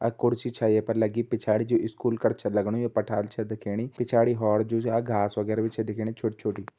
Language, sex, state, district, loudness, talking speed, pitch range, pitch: Hindi, male, Uttarakhand, Uttarkashi, -27 LUFS, 230 wpm, 105-115 Hz, 110 Hz